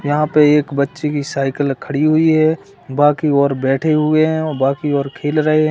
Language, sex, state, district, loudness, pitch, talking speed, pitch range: Hindi, male, Uttar Pradesh, Lalitpur, -16 LUFS, 150 Hz, 210 wpm, 140-155 Hz